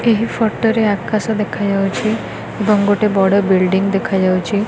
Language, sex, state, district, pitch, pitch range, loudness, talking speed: Odia, female, Odisha, Khordha, 205 Hz, 195-220 Hz, -16 LUFS, 115 wpm